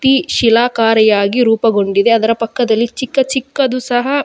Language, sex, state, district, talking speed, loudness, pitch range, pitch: Kannada, female, Karnataka, Dakshina Kannada, 115 wpm, -13 LUFS, 225-260 Hz, 235 Hz